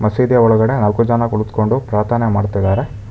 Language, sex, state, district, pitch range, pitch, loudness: Kannada, male, Karnataka, Bangalore, 105-120 Hz, 110 Hz, -15 LUFS